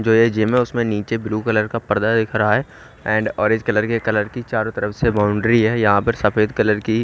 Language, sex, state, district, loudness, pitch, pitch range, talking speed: Hindi, male, Haryana, Rohtak, -18 LUFS, 110 Hz, 105-115 Hz, 250 wpm